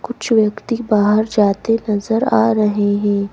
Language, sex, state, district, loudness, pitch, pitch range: Hindi, female, Madhya Pradesh, Bhopal, -16 LUFS, 215 Hz, 205-225 Hz